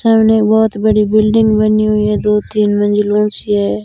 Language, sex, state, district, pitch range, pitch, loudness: Hindi, female, Rajasthan, Bikaner, 210-215 Hz, 210 Hz, -12 LUFS